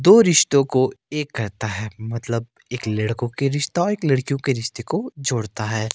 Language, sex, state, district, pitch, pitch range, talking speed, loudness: Hindi, male, Himachal Pradesh, Shimla, 125 Hz, 110-140 Hz, 180 wpm, -21 LUFS